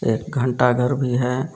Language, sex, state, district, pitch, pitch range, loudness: Hindi, male, Jharkhand, Garhwa, 125 Hz, 125-130 Hz, -20 LUFS